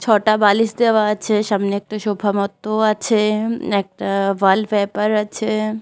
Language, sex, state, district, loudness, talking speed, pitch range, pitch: Bengali, female, West Bengal, Malda, -18 LUFS, 125 wpm, 200-215 Hz, 210 Hz